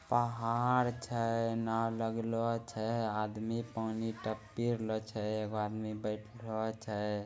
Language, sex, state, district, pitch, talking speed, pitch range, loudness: Angika, male, Bihar, Begusarai, 115 Hz, 125 wpm, 110-115 Hz, -36 LUFS